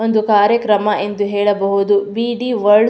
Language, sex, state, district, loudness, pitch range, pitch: Kannada, female, Karnataka, Mysore, -15 LUFS, 205-225 Hz, 210 Hz